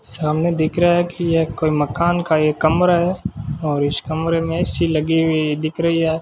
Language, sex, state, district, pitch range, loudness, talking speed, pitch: Hindi, male, Rajasthan, Bikaner, 155-170 Hz, -17 LUFS, 210 wpm, 160 Hz